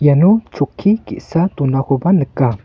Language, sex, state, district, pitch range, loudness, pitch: Garo, male, Meghalaya, North Garo Hills, 135-190 Hz, -15 LUFS, 165 Hz